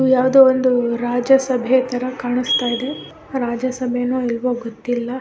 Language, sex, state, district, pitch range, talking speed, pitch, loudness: Kannada, female, Karnataka, Gulbarga, 245-260 Hz, 150 wpm, 250 Hz, -18 LUFS